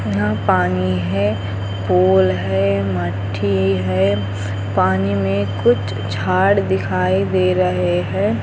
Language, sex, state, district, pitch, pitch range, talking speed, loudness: Hindi, female, Andhra Pradesh, Anantapur, 95 Hz, 95-100 Hz, 105 wpm, -18 LUFS